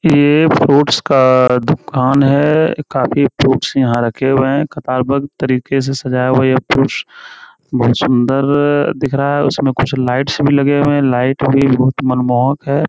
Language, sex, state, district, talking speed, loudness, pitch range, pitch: Hindi, male, Bihar, Jamui, 180 wpm, -13 LUFS, 130-145 Hz, 135 Hz